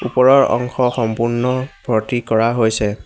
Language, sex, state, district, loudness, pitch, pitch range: Assamese, male, Assam, Hailakandi, -16 LUFS, 120 Hz, 110-125 Hz